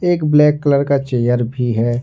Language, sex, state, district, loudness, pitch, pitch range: Hindi, male, Jharkhand, Ranchi, -15 LUFS, 140 Hz, 120-150 Hz